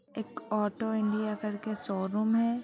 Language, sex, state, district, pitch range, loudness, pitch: Hindi, female, Bihar, Purnia, 210-225 Hz, -32 LUFS, 215 Hz